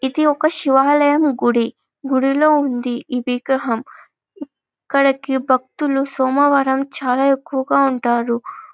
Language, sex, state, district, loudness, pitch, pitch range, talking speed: Telugu, female, Andhra Pradesh, Anantapur, -17 LUFS, 270 Hz, 255-285 Hz, 105 wpm